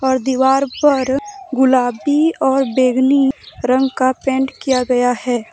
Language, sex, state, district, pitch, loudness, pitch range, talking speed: Hindi, female, Jharkhand, Deoghar, 265 Hz, -16 LUFS, 255-270 Hz, 120 wpm